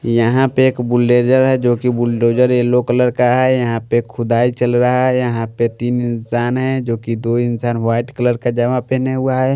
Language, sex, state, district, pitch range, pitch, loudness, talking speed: Hindi, male, Bihar, Patna, 120-125 Hz, 120 Hz, -15 LUFS, 205 wpm